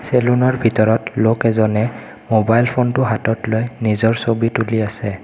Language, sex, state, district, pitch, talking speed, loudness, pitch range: Assamese, male, Assam, Kamrup Metropolitan, 115 Hz, 160 wpm, -17 LUFS, 110-120 Hz